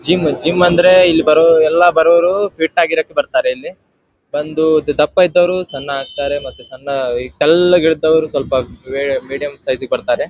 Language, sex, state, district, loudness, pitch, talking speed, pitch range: Kannada, male, Karnataka, Dharwad, -14 LUFS, 160 Hz, 130 wpm, 145-180 Hz